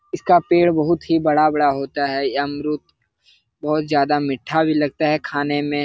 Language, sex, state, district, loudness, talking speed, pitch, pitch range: Hindi, male, Bihar, Jahanabad, -19 LUFS, 155 wpm, 150 Hz, 140-155 Hz